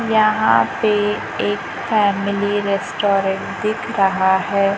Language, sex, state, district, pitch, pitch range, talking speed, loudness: Hindi, female, Maharashtra, Gondia, 200 Hz, 195-215 Hz, 100 wpm, -18 LUFS